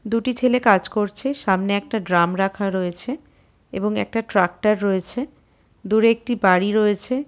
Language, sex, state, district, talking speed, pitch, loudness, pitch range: Bengali, female, West Bengal, Purulia, 140 wpm, 210 Hz, -20 LUFS, 190-235 Hz